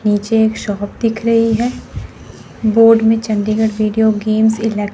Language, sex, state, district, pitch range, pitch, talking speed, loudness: Hindi, female, Chandigarh, Chandigarh, 215-225 Hz, 220 Hz, 145 wpm, -14 LUFS